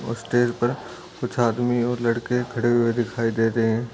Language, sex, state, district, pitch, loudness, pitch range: Hindi, male, Uttar Pradesh, Etah, 120 Hz, -23 LUFS, 115-120 Hz